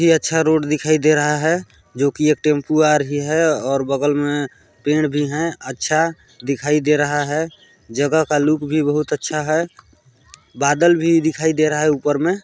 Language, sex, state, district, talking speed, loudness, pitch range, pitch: Hindi, male, Chhattisgarh, Balrampur, 200 wpm, -18 LUFS, 145-160 Hz, 150 Hz